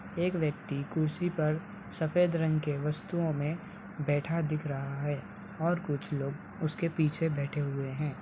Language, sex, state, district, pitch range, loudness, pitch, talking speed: Hindi, male, Uttar Pradesh, Budaun, 145-170 Hz, -32 LUFS, 155 Hz, 160 wpm